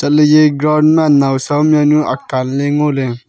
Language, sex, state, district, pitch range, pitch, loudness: Wancho, male, Arunachal Pradesh, Longding, 135-150 Hz, 145 Hz, -12 LUFS